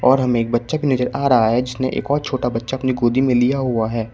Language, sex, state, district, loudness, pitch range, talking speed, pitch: Hindi, male, Uttar Pradesh, Shamli, -18 LUFS, 120-130 Hz, 290 wpm, 125 Hz